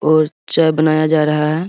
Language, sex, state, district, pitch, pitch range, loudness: Hindi, male, Bihar, Araria, 155 Hz, 150-160 Hz, -15 LUFS